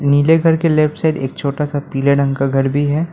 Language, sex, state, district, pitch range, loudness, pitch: Hindi, male, Arunachal Pradesh, Lower Dibang Valley, 140-160 Hz, -15 LUFS, 145 Hz